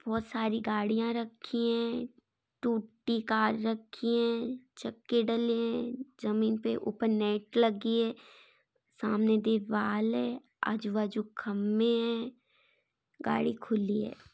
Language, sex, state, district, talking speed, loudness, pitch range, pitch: Hindi, female, Chhattisgarh, Kabirdham, 115 wpm, -31 LUFS, 215-235 Hz, 230 Hz